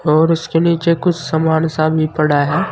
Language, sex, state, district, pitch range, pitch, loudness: Hindi, male, Uttar Pradesh, Saharanpur, 155-165 Hz, 160 Hz, -15 LUFS